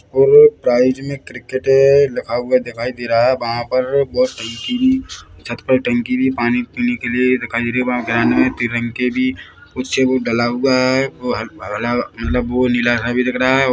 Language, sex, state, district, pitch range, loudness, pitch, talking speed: Hindi, male, Chhattisgarh, Bilaspur, 120-130 Hz, -16 LUFS, 125 Hz, 210 wpm